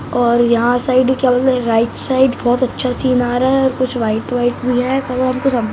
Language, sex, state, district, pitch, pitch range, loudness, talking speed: Maithili, male, Bihar, Saharsa, 250 Hz, 245-260 Hz, -15 LUFS, 210 wpm